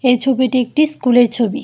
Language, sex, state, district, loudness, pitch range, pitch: Bengali, female, Tripura, Dhalai, -15 LUFS, 245-265 Hz, 255 Hz